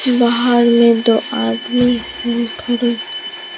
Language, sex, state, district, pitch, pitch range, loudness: Hindi, male, Bihar, Katihar, 240 Hz, 235-245 Hz, -15 LUFS